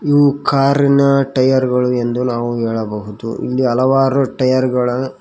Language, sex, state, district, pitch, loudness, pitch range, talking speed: Kannada, male, Karnataka, Koppal, 130 Hz, -15 LUFS, 120-135 Hz, 115 wpm